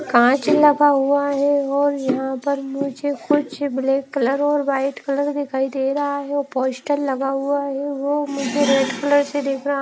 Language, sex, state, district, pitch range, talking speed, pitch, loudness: Hindi, female, Himachal Pradesh, Shimla, 270-285 Hz, 185 wpm, 280 Hz, -20 LUFS